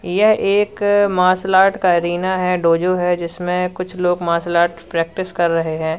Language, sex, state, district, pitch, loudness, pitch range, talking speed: Hindi, male, Uttar Pradesh, Lalitpur, 180 Hz, -17 LUFS, 170-185 Hz, 180 wpm